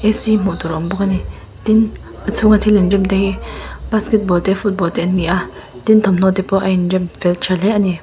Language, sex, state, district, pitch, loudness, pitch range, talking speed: Mizo, female, Mizoram, Aizawl, 195 Hz, -16 LUFS, 185-215 Hz, 240 wpm